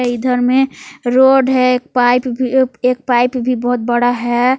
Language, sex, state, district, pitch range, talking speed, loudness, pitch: Hindi, female, Jharkhand, Palamu, 245-260 Hz, 155 wpm, -14 LUFS, 250 Hz